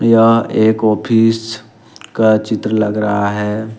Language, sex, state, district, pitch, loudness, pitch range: Hindi, male, Jharkhand, Ranchi, 110 Hz, -14 LUFS, 105-115 Hz